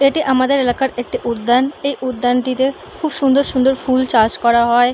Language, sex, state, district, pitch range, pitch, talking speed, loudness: Bengali, female, West Bengal, Purulia, 245-275 Hz, 255 Hz, 170 wpm, -16 LUFS